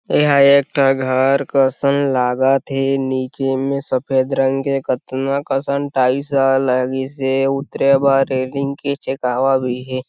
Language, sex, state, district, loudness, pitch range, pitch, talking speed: Chhattisgarhi, male, Chhattisgarh, Sarguja, -17 LUFS, 130-140 Hz, 135 Hz, 145 wpm